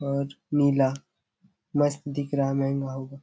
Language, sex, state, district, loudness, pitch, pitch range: Hindi, male, Chhattisgarh, Bastar, -26 LUFS, 140 Hz, 135-145 Hz